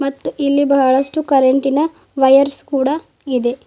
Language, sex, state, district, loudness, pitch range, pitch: Kannada, female, Karnataka, Bidar, -15 LUFS, 265-285 Hz, 275 Hz